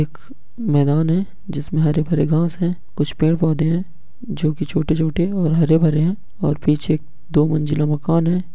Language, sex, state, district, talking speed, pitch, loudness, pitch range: Hindi, male, Bihar, Muzaffarpur, 155 wpm, 160 Hz, -19 LUFS, 150-170 Hz